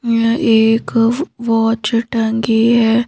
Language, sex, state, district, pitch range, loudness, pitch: Hindi, female, Madhya Pradesh, Bhopal, 225-235 Hz, -14 LUFS, 230 Hz